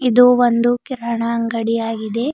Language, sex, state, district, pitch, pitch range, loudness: Kannada, female, Karnataka, Bidar, 235 Hz, 230-245 Hz, -17 LUFS